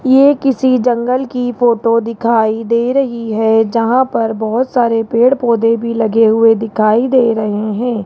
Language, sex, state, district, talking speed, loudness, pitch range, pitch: Hindi, male, Rajasthan, Jaipur, 165 wpm, -13 LUFS, 225-250 Hz, 230 Hz